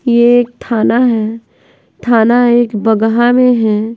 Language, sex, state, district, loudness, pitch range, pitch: Hindi, female, Bihar, West Champaran, -11 LUFS, 225-245 Hz, 235 Hz